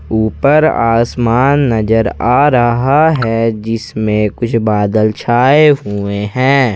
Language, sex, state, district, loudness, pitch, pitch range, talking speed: Hindi, male, Jharkhand, Ranchi, -12 LUFS, 115 Hz, 110-135 Hz, 105 wpm